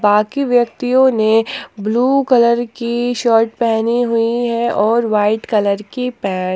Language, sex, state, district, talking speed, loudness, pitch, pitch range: Hindi, female, Jharkhand, Palamu, 145 wpm, -15 LUFS, 235 Hz, 215-245 Hz